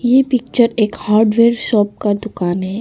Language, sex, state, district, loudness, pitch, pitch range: Hindi, female, Arunachal Pradesh, Longding, -15 LUFS, 220 Hz, 205-235 Hz